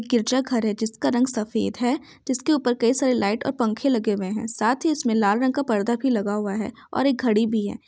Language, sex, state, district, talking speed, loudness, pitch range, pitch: Hindi, female, Bihar, Saran, 245 wpm, -23 LUFS, 215-260 Hz, 235 Hz